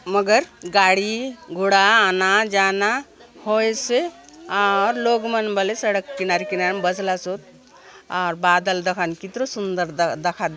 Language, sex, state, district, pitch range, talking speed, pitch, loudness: Halbi, female, Chhattisgarh, Bastar, 185-220 Hz, 130 wpm, 195 Hz, -20 LUFS